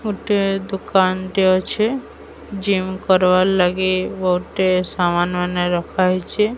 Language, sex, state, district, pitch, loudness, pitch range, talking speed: Odia, female, Odisha, Sambalpur, 185 Hz, -18 LUFS, 185-195 Hz, 120 wpm